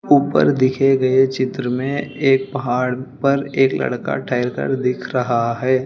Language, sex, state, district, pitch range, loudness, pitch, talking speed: Hindi, female, Telangana, Hyderabad, 125-135 Hz, -18 LUFS, 130 Hz, 155 wpm